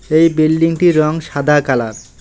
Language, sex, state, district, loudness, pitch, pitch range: Bengali, male, West Bengal, Alipurduar, -14 LUFS, 155 Hz, 145-165 Hz